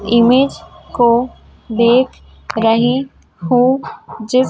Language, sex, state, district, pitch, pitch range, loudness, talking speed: Hindi, male, Chhattisgarh, Raipur, 245 Hz, 235-255 Hz, -14 LUFS, 80 wpm